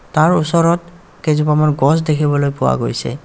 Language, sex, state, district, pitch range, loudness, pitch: Assamese, male, Assam, Kamrup Metropolitan, 145-170 Hz, -15 LUFS, 155 Hz